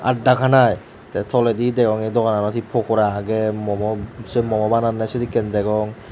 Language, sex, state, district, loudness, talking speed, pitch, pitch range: Chakma, male, Tripura, Dhalai, -19 LUFS, 145 wpm, 110 Hz, 105-120 Hz